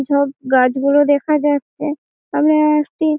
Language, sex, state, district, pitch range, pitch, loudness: Bengali, female, West Bengal, Malda, 280-300 Hz, 290 Hz, -16 LUFS